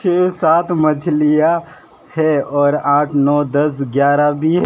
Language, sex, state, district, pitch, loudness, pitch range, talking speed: Hindi, male, Madhya Pradesh, Dhar, 150 Hz, -15 LUFS, 145-165 Hz, 130 wpm